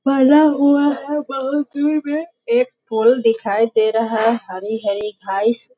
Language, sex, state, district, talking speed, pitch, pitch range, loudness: Hindi, female, Bihar, Sitamarhi, 155 wpm, 255 Hz, 225-290 Hz, -17 LUFS